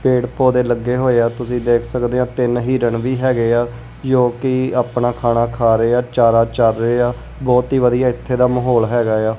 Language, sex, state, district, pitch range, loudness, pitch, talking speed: Punjabi, male, Punjab, Kapurthala, 120-125 Hz, -16 LUFS, 120 Hz, 215 wpm